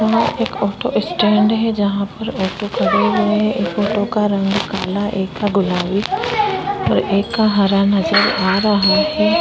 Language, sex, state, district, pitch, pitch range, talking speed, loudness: Hindi, female, Uttar Pradesh, Hamirpur, 205 Hz, 200-215 Hz, 170 wpm, -17 LUFS